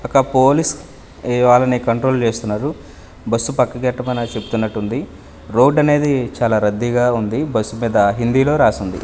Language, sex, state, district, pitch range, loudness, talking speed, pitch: Telugu, male, Andhra Pradesh, Manyam, 110-130 Hz, -17 LUFS, 125 wpm, 120 Hz